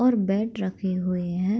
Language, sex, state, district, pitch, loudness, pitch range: Hindi, female, Bihar, Begusarai, 195 Hz, -26 LUFS, 185-215 Hz